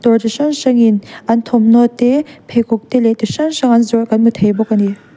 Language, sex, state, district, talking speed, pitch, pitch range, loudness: Mizo, female, Mizoram, Aizawl, 245 wpm, 230 Hz, 220-245 Hz, -13 LUFS